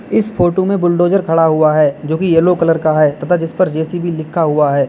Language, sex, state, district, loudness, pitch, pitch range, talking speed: Hindi, male, Uttar Pradesh, Lalitpur, -14 LUFS, 165 Hz, 155-175 Hz, 245 wpm